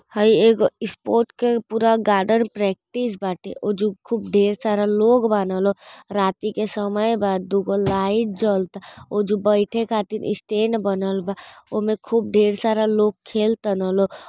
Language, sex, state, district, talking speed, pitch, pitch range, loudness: Hindi, female, Uttar Pradesh, Gorakhpur, 160 wpm, 210 Hz, 200-220 Hz, -21 LUFS